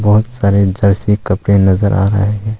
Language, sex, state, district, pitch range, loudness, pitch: Hindi, male, Arunachal Pradesh, Longding, 100-105 Hz, -13 LUFS, 100 Hz